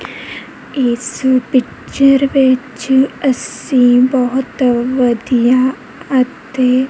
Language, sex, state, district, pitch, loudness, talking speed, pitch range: Punjabi, female, Punjab, Kapurthala, 255 Hz, -14 LUFS, 60 wpm, 250-265 Hz